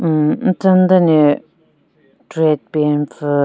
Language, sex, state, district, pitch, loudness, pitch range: Rengma, female, Nagaland, Kohima, 155 Hz, -14 LUFS, 150-185 Hz